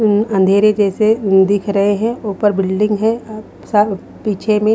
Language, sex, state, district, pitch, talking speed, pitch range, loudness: Hindi, female, Haryana, Rohtak, 210 Hz, 165 wpm, 200-215 Hz, -15 LUFS